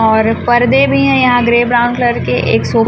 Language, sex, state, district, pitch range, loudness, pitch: Hindi, female, Chhattisgarh, Raipur, 220-240 Hz, -11 LUFS, 240 Hz